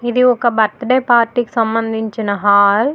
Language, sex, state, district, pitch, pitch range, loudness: Telugu, female, Telangana, Hyderabad, 230 Hz, 220-245 Hz, -14 LUFS